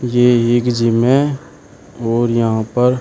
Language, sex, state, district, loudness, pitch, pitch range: Hindi, male, Uttar Pradesh, Shamli, -15 LUFS, 120 Hz, 115-125 Hz